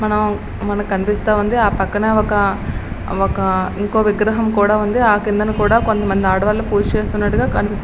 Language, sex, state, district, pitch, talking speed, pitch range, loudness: Telugu, female, Andhra Pradesh, Srikakulam, 210 Hz, 145 wpm, 205-215 Hz, -17 LUFS